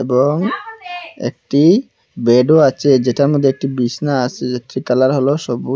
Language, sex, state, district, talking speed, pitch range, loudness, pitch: Bengali, male, Assam, Hailakandi, 145 wpm, 125-155 Hz, -15 LUFS, 135 Hz